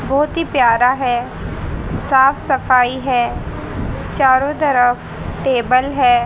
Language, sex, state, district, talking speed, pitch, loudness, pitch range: Hindi, female, Haryana, Rohtak, 105 wpm, 260 Hz, -16 LUFS, 245-275 Hz